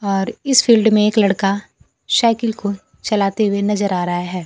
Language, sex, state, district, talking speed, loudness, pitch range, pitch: Hindi, female, Bihar, Kaimur, 190 wpm, -17 LUFS, 195-220 Hz, 205 Hz